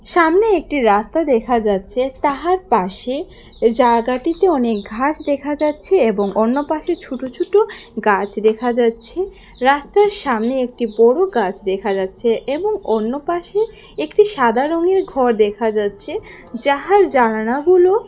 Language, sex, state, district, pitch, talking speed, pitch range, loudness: Bengali, female, Tripura, West Tripura, 260 Hz, 125 wpm, 230-350 Hz, -17 LUFS